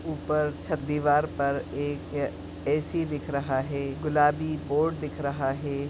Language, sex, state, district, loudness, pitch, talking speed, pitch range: Hindi, female, Goa, North and South Goa, -28 LUFS, 145 Hz, 140 wpm, 140-150 Hz